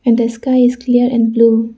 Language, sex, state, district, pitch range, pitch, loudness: English, female, Arunachal Pradesh, Lower Dibang Valley, 230-245 Hz, 235 Hz, -13 LUFS